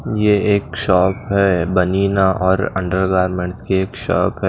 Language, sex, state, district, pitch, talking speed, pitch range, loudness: Hindi, male, Odisha, Nuapada, 95 Hz, 145 wpm, 90-100 Hz, -17 LUFS